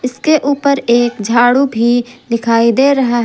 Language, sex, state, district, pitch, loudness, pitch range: Hindi, female, Jharkhand, Ranchi, 245 Hz, -12 LUFS, 235-275 Hz